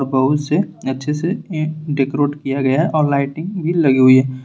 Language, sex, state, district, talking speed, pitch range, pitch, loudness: Hindi, male, Jharkhand, Ranchi, 175 wpm, 135-160 Hz, 145 Hz, -17 LUFS